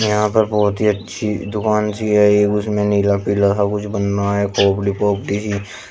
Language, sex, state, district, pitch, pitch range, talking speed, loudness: Hindi, male, Uttar Pradesh, Shamli, 105 Hz, 100-105 Hz, 160 wpm, -17 LUFS